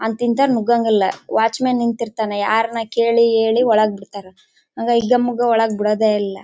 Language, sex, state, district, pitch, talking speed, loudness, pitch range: Kannada, female, Karnataka, Bellary, 225 Hz, 165 wpm, -17 LUFS, 215-235 Hz